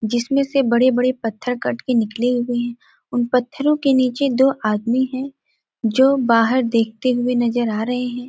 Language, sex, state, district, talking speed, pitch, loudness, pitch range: Hindi, female, Bihar, Gopalganj, 180 wpm, 245 Hz, -19 LUFS, 235-260 Hz